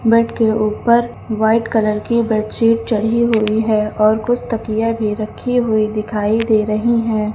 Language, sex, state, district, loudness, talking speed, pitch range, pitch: Hindi, female, Uttar Pradesh, Lucknow, -16 LUFS, 165 wpm, 215-230 Hz, 220 Hz